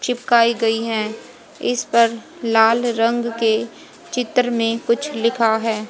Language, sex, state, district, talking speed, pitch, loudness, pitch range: Hindi, female, Haryana, Jhajjar, 130 wpm, 230 Hz, -19 LUFS, 225-240 Hz